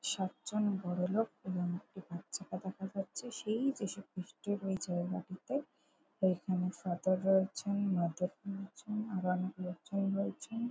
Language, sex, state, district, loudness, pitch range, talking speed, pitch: Bengali, female, West Bengal, Jhargram, -37 LUFS, 180-205 Hz, 90 wpm, 190 Hz